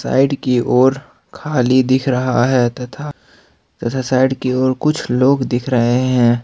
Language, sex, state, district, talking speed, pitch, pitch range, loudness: Hindi, male, Jharkhand, Ranchi, 150 wpm, 130 Hz, 125-130 Hz, -16 LUFS